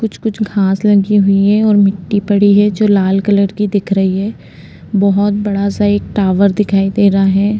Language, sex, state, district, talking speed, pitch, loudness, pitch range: Hindi, female, Uttarakhand, Tehri Garhwal, 195 wpm, 200 Hz, -12 LUFS, 195-210 Hz